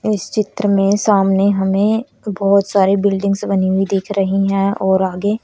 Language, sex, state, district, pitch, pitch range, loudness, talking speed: Hindi, female, Haryana, Rohtak, 195 Hz, 195-205 Hz, -16 LUFS, 165 wpm